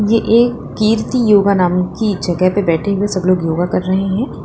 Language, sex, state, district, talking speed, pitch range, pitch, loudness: Hindi, female, Uttar Pradesh, Lalitpur, 215 wpm, 180-220 Hz, 200 Hz, -15 LUFS